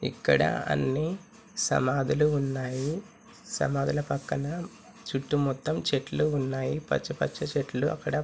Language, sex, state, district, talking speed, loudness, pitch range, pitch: Telugu, male, Andhra Pradesh, Chittoor, 110 wpm, -29 LUFS, 135-175 Hz, 150 Hz